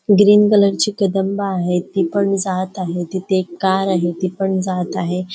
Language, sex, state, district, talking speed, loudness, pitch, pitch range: Marathi, female, Goa, North and South Goa, 190 wpm, -17 LUFS, 190 Hz, 180-195 Hz